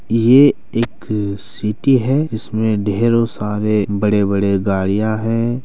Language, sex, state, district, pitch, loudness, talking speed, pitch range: Hindi, male, Bihar, Araria, 110 Hz, -16 LUFS, 105 wpm, 105-115 Hz